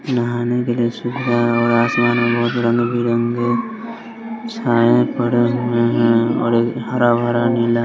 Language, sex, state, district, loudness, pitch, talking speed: Hindi, male, Bihar, West Champaran, -17 LUFS, 120 Hz, 145 wpm